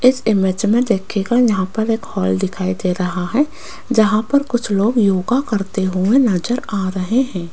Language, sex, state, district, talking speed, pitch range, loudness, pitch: Hindi, female, Rajasthan, Jaipur, 185 wpm, 185-240 Hz, -17 LUFS, 210 Hz